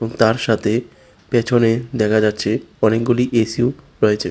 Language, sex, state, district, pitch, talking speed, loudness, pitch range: Bengali, male, Tripura, West Tripura, 115 Hz, 110 wpm, -18 LUFS, 110-120 Hz